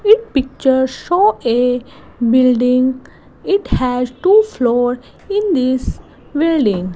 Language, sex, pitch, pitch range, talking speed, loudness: English, female, 260 Hz, 250-360 Hz, 105 wpm, -15 LUFS